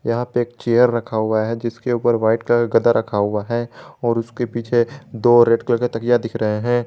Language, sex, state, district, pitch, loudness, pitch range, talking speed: Hindi, male, Jharkhand, Garhwa, 120 Hz, -19 LUFS, 115-120 Hz, 235 wpm